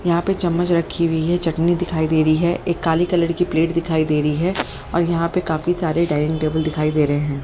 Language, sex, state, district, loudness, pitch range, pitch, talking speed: Hindi, female, Haryana, Jhajjar, -19 LUFS, 155-175 Hz, 165 Hz, 250 wpm